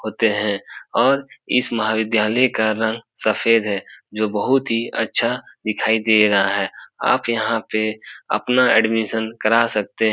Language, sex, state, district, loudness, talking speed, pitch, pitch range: Hindi, male, Bihar, Supaul, -19 LUFS, 150 wpm, 110 Hz, 105-115 Hz